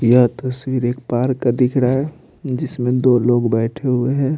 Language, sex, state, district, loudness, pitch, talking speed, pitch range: Hindi, male, Bihar, Patna, -18 LUFS, 125 Hz, 190 wpm, 120-130 Hz